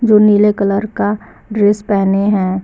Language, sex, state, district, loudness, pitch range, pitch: Hindi, female, Uttar Pradesh, Lucknow, -13 LUFS, 200-210 Hz, 205 Hz